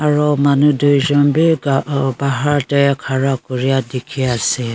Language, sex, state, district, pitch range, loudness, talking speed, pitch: Nagamese, female, Nagaland, Kohima, 130-145 Hz, -15 LUFS, 140 wpm, 140 Hz